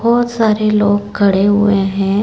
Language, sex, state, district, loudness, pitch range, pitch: Hindi, female, Chhattisgarh, Raipur, -13 LUFS, 200-215 Hz, 205 Hz